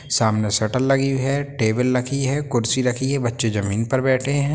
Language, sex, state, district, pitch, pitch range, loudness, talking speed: Hindi, male, Bihar, Sitamarhi, 130 Hz, 115-135 Hz, -20 LUFS, 210 wpm